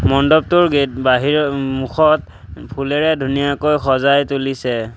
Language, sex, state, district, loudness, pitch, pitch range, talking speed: Assamese, male, Assam, Sonitpur, -16 LUFS, 140 Hz, 135-150 Hz, 110 wpm